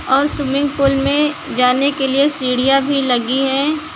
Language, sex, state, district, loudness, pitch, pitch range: Hindi, female, Uttar Pradesh, Lucknow, -16 LUFS, 275 Hz, 265-285 Hz